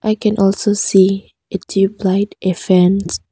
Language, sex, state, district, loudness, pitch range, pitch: English, female, Arunachal Pradesh, Longding, -15 LUFS, 190-205 Hz, 195 Hz